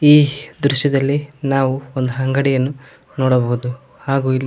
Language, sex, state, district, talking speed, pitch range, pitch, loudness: Kannada, male, Karnataka, Koppal, 105 wpm, 130-140 Hz, 135 Hz, -18 LUFS